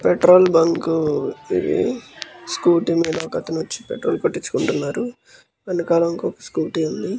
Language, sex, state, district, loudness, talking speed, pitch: Telugu, male, Andhra Pradesh, Guntur, -20 LUFS, 115 wpm, 175 Hz